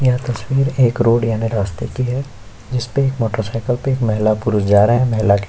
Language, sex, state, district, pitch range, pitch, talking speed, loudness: Hindi, male, Chhattisgarh, Korba, 110-125 Hz, 115 Hz, 220 wpm, -17 LUFS